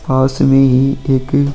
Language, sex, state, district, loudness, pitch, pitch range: Hindi, male, Chhattisgarh, Sukma, -13 LUFS, 135 Hz, 130-140 Hz